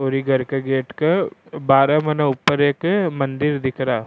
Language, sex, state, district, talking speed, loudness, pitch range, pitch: Rajasthani, male, Rajasthan, Churu, 190 wpm, -19 LUFS, 135-155 Hz, 140 Hz